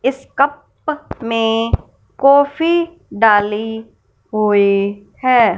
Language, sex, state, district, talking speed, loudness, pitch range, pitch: Hindi, female, Punjab, Fazilka, 75 wpm, -16 LUFS, 210-280 Hz, 230 Hz